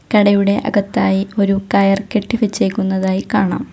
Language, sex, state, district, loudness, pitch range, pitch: Malayalam, female, Kerala, Kollam, -16 LUFS, 195-210 Hz, 200 Hz